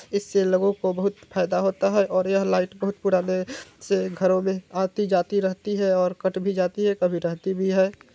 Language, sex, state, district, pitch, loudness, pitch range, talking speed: Hindi, male, Bihar, Vaishali, 190 Hz, -23 LUFS, 185-200 Hz, 200 wpm